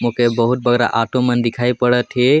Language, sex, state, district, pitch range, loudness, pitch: Sadri, male, Chhattisgarh, Jashpur, 120-125 Hz, -16 LUFS, 120 Hz